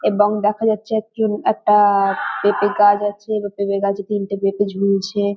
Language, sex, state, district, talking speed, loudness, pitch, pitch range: Bengali, female, West Bengal, North 24 Parganas, 165 wpm, -18 LUFS, 205 Hz, 200-210 Hz